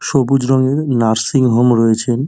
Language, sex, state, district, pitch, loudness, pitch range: Bengali, male, West Bengal, Dakshin Dinajpur, 125 Hz, -14 LUFS, 115-135 Hz